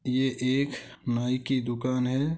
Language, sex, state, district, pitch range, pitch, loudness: Hindi, male, Rajasthan, Nagaur, 125-135 Hz, 130 Hz, -28 LUFS